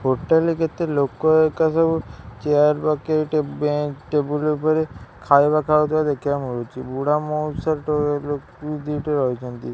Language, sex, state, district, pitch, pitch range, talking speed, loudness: Odia, male, Odisha, Khordha, 150 Hz, 145-155 Hz, 130 wpm, -21 LUFS